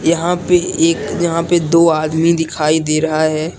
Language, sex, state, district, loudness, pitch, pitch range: Hindi, male, Jharkhand, Deoghar, -14 LUFS, 165 Hz, 155-170 Hz